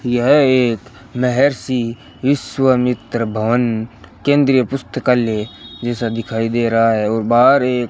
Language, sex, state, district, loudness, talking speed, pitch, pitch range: Hindi, male, Rajasthan, Bikaner, -16 LUFS, 120 wpm, 120 Hz, 115-125 Hz